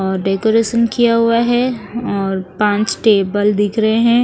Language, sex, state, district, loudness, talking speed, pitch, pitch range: Hindi, female, Haryana, Rohtak, -15 LUFS, 155 wpm, 220 Hz, 200-235 Hz